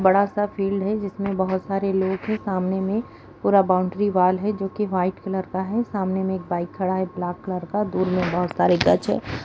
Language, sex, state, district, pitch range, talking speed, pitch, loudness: Hindi, female, Bihar, Madhepura, 185-200 Hz, 220 wpm, 190 Hz, -23 LUFS